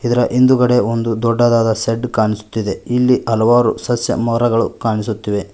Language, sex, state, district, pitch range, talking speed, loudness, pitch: Kannada, male, Karnataka, Koppal, 110-120 Hz, 120 wpm, -15 LUFS, 115 Hz